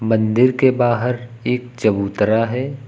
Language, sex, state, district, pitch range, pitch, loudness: Hindi, male, Uttar Pradesh, Lucknow, 110-125 Hz, 120 Hz, -18 LUFS